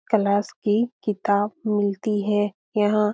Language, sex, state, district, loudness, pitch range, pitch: Hindi, female, Bihar, Lakhisarai, -23 LUFS, 205-215 Hz, 210 Hz